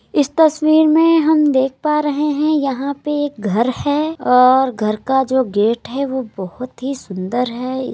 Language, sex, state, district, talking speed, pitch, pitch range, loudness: Hindi, female, Uttar Pradesh, Jalaun, 180 wpm, 265 Hz, 250-300 Hz, -16 LUFS